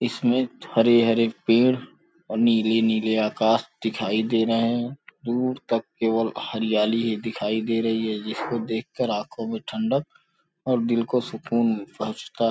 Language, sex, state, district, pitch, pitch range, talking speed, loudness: Hindi, male, Uttar Pradesh, Gorakhpur, 115 Hz, 110-120 Hz, 150 wpm, -24 LUFS